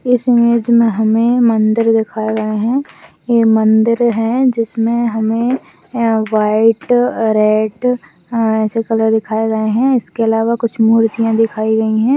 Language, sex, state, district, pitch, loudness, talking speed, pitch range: Hindi, female, Maharashtra, Aurangabad, 225 Hz, -14 LUFS, 140 wpm, 220-235 Hz